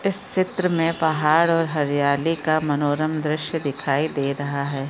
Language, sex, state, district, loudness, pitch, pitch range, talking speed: Hindi, female, Chhattisgarh, Bilaspur, -21 LUFS, 155 Hz, 145-165 Hz, 160 wpm